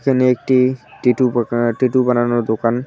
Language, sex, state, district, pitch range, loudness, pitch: Bengali, male, West Bengal, Cooch Behar, 120-130 Hz, -16 LUFS, 125 Hz